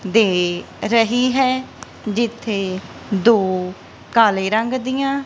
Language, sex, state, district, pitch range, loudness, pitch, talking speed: Punjabi, female, Punjab, Kapurthala, 195-250 Hz, -18 LUFS, 225 Hz, 105 wpm